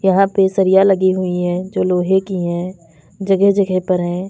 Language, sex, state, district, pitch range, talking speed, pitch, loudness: Hindi, female, Uttar Pradesh, Lalitpur, 180-195 Hz, 195 wpm, 185 Hz, -16 LUFS